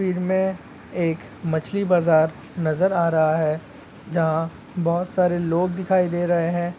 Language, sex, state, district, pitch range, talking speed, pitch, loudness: Hindi, male, Jharkhand, Sahebganj, 160-180 Hz, 150 wpm, 175 Hz, -22 LUFS